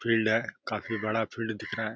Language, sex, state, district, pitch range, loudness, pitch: Hindi, male, Uttar Pradesh, Deoria, 110-115 Hz, -30 LUFS, 110 Hz